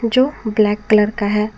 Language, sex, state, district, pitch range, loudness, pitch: Hindi, female, Jharkhand, Garhwa, 210-230 Hz, -16 LUFS, 215 Hz